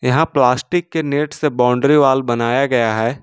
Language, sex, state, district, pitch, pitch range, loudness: Hindi, male, Jharkhand, Ranchi, 135 Hz, 125-150 Hz, -16 LUFS